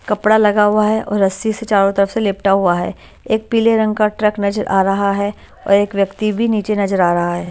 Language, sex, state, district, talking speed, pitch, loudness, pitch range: Hindi, female, Maharashtra, Washim, 250 wpm, 205 Hz, -16 LUFS, 195-215 Hz